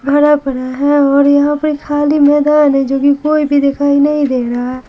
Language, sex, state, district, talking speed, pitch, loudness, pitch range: Hindi, female, Bihar, Patna, 210 wpm, 285 Hz, -12 LUFS, 275-295 Hz